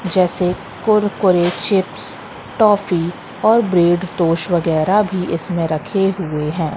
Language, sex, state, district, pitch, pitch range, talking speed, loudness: Hindi, female, Madhya Pradesh, Katni, 180 Hz, 170-195 Hz, 115 wpm, -17 LUFS